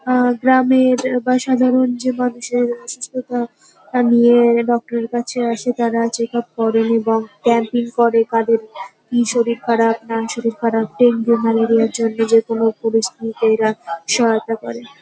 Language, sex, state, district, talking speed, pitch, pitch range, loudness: Bengali, female, West Bengal, North 24 Parganas, 145 wpm, 235 Hz, 225-245 Hz, -17 LUFS